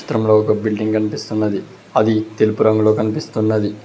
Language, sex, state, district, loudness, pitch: Telugu, male, Telangana, Hyderabad, -17 LUFS, 110 Hz